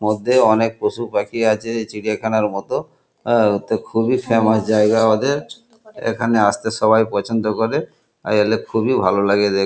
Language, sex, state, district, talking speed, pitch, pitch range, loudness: Bengali, male, West Bengal, Kolkata, 150 wpm, 110 Hz, 105-115 Hz, -18 LUFS